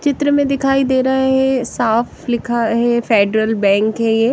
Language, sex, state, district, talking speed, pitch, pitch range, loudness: Hindi, female, Punjab, Kapurthala, 180 wpm, 240 Hz, 225-265 Hz, -15 LUFS